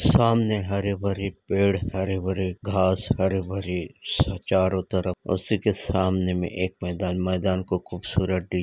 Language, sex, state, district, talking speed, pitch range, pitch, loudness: Hindi, male, Uttarakhand, Uttarkashi, 145 wpm, 90-100 Hz, 95 Hz, -24 LUFS